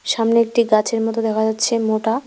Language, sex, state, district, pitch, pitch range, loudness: Bengali, female, West Bengal, Cooch Behar, 225 Hz, 220-230 Hz, -18 LUFS